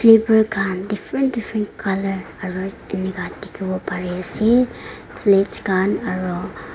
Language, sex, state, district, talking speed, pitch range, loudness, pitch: Nagamese, female, Nagaland, Dimapur, 105 wpm, 185-220 Hz, -20 LUFS, 195 Hz